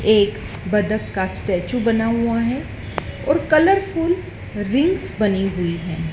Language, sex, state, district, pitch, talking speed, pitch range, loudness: Hindi, female, Madhya Pradesh, Dhar, 215 Hz, 125 wpm, 190-255 Hz, -20 LUFS